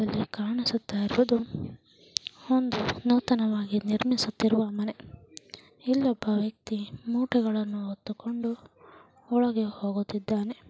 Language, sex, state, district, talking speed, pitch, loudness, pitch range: Kannada, female, Karnataka, Chamarajanagar, 65 wpm, 220 Hz, -28 LUFS, 210-245 Hz